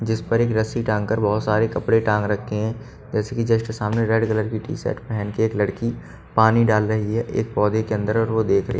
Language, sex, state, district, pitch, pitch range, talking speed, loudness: Hindi, male, Haryana, Charkhi Dadri, 110 Hz, 105-115 Hz, 250 wpm, -21 LUFS